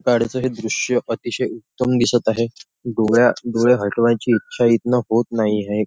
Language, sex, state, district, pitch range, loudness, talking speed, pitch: Marathi, male, Maharashtra, Nagpur, 110-120 Hz, -19 LUFS, 155 wpm, 115 Hz